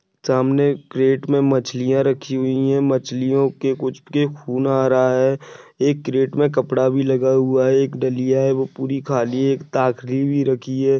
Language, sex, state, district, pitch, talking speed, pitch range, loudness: Hindi, male, Maharashtra, Dhule, 135 Hz, 190 wpm, 130-135 Hz, -19 LUFS